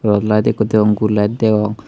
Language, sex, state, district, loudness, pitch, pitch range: Chakma, male, Tripura, Dhalai, -15 LUFS, 105 Hz, 105-110 Hz